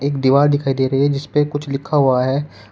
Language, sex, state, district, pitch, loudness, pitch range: Hindi, male, Uttar Pradesh, Shamli, 140 Hz, -17 LUFS, 135-145 Hz